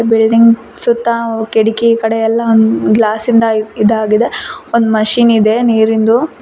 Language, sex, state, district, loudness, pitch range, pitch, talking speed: Kannada, female, Karnataka, Koppal, -11 LUFS, 220-230 Hz, 225 Hz, 120 wpm